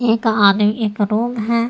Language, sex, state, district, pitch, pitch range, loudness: Hindi, female, Uttar Pradesh, Etah, 220 Hz, 210-230 Hz, -16 LUFS